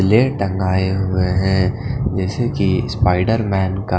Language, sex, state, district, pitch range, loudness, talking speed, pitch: Hindi, male, Himachal Pradesh, Shimla, 95-115 Hz, -18 LUFS, 150 wpm, 95 Hz